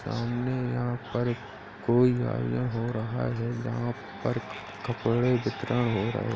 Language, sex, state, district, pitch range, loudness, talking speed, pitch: Hindi, male, Uttar Pradesh, Jalaun, 115-125 Hz, -29 LUFS, 130 wpm, 120 Hz